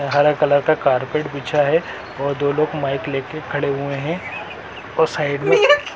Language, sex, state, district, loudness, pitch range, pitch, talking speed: Hindi, male, Bihar, Saran, -19 LUFS, 140-155 Hz, 145 Hz, 170 wpm